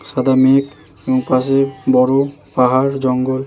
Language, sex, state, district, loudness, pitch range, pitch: Bengali, male, West Bengal, Jalpaiguri, -15 LUFS, 130-135 Hz, 130 Hz